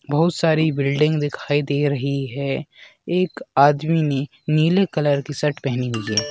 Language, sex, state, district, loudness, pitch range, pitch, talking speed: Hindi, male, Bihar, Jamui, -20 LUFS, 140-160 Hz, 145 Hz, 160 wpm